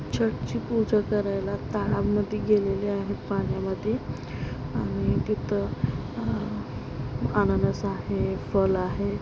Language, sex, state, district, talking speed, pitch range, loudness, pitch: Marathi, female, Maharashtra, Aurangabad, 95 wpm, 195-210 Hz, -27 LUFS, 200 Hz